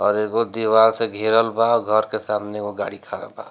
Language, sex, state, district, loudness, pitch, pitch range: Bhojpuri, male, Bihar, Gopalganj, -19 LUFS, 110 Hz, 105-115 Hz